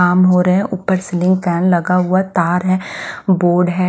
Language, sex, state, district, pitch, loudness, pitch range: Hindi, female, Bihar, West Champaran, 180 Hz, -15 LUFS, 180-185 Hz